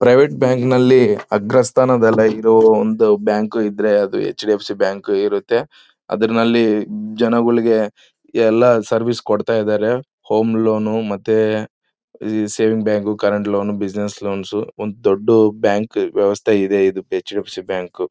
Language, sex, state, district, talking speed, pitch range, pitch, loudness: Kannada, male, Karnataka, Bellary, 115 wpm, 105-120 Hz, 110 Hz, -16 LUFS